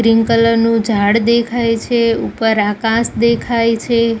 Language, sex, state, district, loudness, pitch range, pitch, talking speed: Gujarati, female, Gujarat, Gandhinagar, -14 LUFS, 225-235 Hz, 230 Hz, 140 wpm